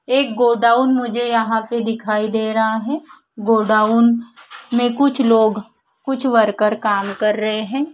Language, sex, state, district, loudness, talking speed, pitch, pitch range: Hindi, female, Punjab, Fazilka, -17 LUFS, 145 wpm, 225 Hz, 215-245 Hz